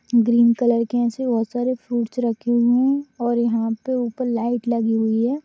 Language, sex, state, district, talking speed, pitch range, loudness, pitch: Hindi, female, Maharashtra, Pune, 200 wpm, 235-245 Hz, -20 LUFS, 240 Hz